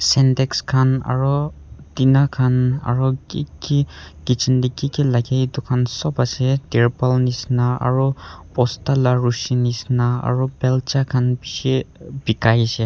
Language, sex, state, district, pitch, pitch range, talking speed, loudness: Nagamese, male, Nagaland, Kohima, 130 Hz, 120-135 Hz, 130 wpm, -19 LUFS